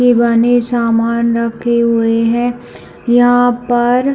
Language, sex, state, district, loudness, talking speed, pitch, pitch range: Hindi, female, Chhattisgarh, Bilaspur, -13 LUFS, 115 wpm, 240 Hz, 230-245 Hz